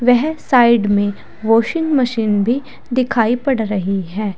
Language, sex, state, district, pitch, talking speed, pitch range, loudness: Hindi, female, Uttar Pradesh, Saharanpur, 230 Hz, 135 wpm, 210-255 Hz, -16 LUFS